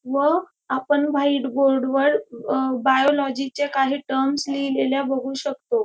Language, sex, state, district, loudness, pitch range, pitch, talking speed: Marathi, female, Maharashtra, Dhule, -21 LUFS, 265-285 Hz, 275 Hz, 135 wpm